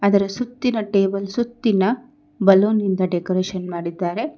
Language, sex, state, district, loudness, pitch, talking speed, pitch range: Kannada, female, Karnataka, Bangalore, -20 LUFS, 200 Hz, 110 wpm, 185-240 Hz